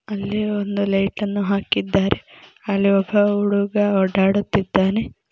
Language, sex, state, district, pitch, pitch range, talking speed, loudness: Kannada, female, Karnataka, Belgaum, 200 Hz, 195-205 Hz, 90 wpm, -20 LUFS